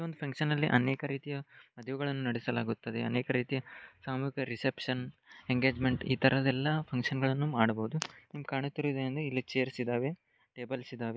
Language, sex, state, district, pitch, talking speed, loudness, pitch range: Kannada, male, Karnataka, Dharwad, 135 Hz, 140 wpm, -33 LUFS, 125-140 Hz